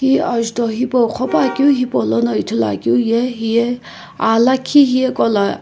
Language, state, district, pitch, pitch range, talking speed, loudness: Sumi, Nagaland, Kohima, 235 Hz, 220-255 Hz, 150 wpm, -15 LUFS